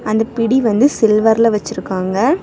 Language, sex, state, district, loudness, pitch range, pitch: Tamil, female, Tamil Nadu, Kanyakumari, -15 LUFS, 215-235 Hz, 225 Hz